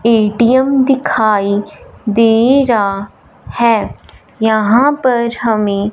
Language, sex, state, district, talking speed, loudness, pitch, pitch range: Hindi, female, Punjab, Fazilka, 80 wpm, -12 LUFS, 225 Hz, 210-245 Hz